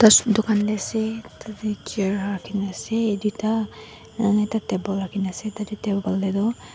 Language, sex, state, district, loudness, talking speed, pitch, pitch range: Nagamese, female, Nagaland, Dimapur, -23 LUFS, 125 wpm, 210 Hz, 200-220 Hz